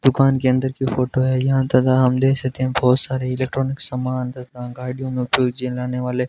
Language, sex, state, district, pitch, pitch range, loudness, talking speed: Hindi, male, Rajasthan, Bikaner, 130 Hz, 125-130 Hz, -20 LUFS, 200 wpm